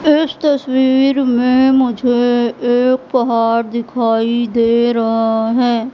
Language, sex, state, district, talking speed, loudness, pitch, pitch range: Hindi, female, Madhya Pradesh, Katni, 100 wpm, -14 LUFS, 245 Hz, 230-260 Hz